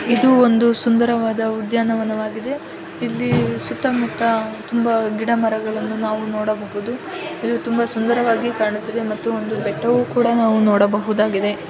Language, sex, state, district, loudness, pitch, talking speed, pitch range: Kannada, female, Karnataka, Raichur, -19 LUFS, 225 Hz, 110 wpm, 215-235 Hz